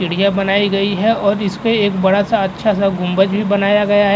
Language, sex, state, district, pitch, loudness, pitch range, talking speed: Hindi, male, Uttar Pradesh, Jalaun, 200 Hz, -15 LUFS, 195-205 Hz, 230 wpm